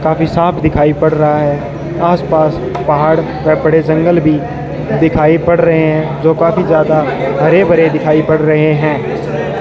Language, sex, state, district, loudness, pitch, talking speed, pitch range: Hindi, male, Rajasthan, Bikaner, -11 LUFS, 155 Hz, 150 wpm, 155-165 Hz